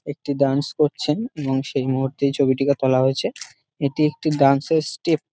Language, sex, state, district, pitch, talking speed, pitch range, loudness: Bengali, male, West Bengal, Dakshin Dinajpur, 140 Hz, 180 wpm, 135-150 Hz, -21 LUFS